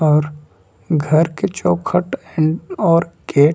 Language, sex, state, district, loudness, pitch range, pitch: Bajjika, male, Bihar, Vaishali, -17 LUFS, 145-160 Hz, 155 Hz